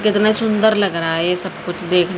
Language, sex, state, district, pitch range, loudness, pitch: Hindi, female, Haryana, Rohtak, 175-210 Hz, -17 LUFS, 185 Hz